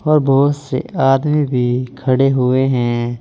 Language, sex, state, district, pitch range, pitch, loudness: Hindi, male, Uttar Pradesh, Saharanpur, 125-145 Hz, 130 Hz, -16 LUFS